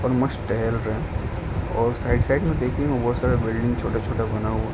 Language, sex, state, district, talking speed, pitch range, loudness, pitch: Hindi, male, Uttar Pradesh, Ghazipur, 205 wpm, 110-120 Hz, -24 LUFS, 115 Hz